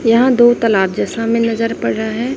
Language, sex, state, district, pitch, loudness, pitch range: Hindi, female, Chhattisgarh, Raipur, 230 Hz, -14 LUFS, 225-240 Hz